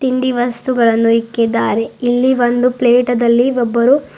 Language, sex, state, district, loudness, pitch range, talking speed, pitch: Kannada, female, Karnataka, Bidar, -14 LUFS, 235-255 Hz, 85 wpm, 245 Hz